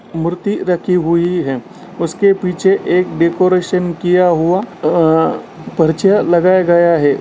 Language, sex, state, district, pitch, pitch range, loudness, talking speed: Hindi, male, Bihar, Gaya, 180 Hz, 170-185 Hz, -14 LUFS, 125 wpm